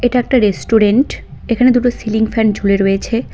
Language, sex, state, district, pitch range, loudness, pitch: Bengali, female, West Bengal, Cooch Behar, 210-245 Hz, -14 LUFS, 225 Hz